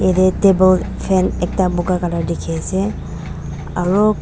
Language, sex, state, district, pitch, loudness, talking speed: Nagamese, female, Nagaland, Dimapur, 180 Hz, -17 LUFS, 130 wpm